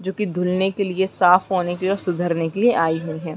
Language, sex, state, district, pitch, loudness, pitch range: Hindi, female, Uttarakhand, Uttarkashi, 180 Hz, -20 LUFS, 170-190 Hz